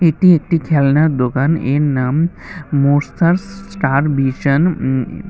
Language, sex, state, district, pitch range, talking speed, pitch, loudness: Bengali, male, Tripura, West Tripura, 140-170 Hz, 115 wpm, 150 Hz, -15 LUFS